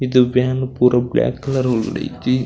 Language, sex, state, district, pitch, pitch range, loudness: Kannada, male, Karnataka, Belgaum, 125 Hz, 125-130 Hz, -18 LUFS